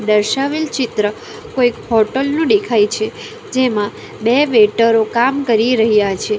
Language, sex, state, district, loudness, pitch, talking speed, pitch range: Gujarati, female, Gujarat, Valsad, -15 LUFS, 230 Hz, 130 wpm, 215-270 Hz